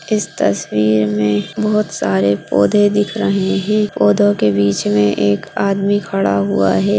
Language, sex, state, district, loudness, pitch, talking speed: Hindi, female, Bihar, Jahanabad, -15 LUFS, 105 Hz, 155 wpm